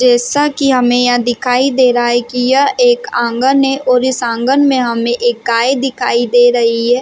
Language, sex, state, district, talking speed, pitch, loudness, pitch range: Hindi, female, Chhattisgarh, Bilaspur, 195 wpm, 245 Hz, -12 LUFS, 240-270 Hz